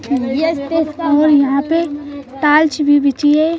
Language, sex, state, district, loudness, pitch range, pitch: Hindi, female, Madhya Pradesh, Bhopal, -14 LUFS, 280-315 Hz, 295 Hz